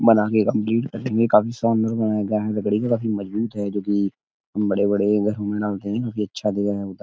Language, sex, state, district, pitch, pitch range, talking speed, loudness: Hindi, male, Uttar Pradesh, Etah, 105 Hz, 100-115 Hz, 195 wpm, -22 LUFS